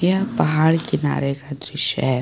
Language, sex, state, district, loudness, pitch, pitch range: Hindi, male, Jharkhand, Garhwa, -20 LUFS, 155 Hz, 140-165 Hz